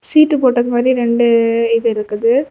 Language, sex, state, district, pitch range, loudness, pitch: Tamil, female, Tamil Nadu, Kanyakumari, 230-255 Hz, -14 LUFS, 240 Hz